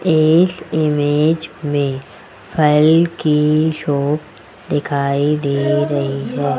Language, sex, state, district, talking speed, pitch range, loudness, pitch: Hindi, male, Rajasthan, Jaipur, 90 wpm, 140-155 Hz, -16 LUFS, 150 Hz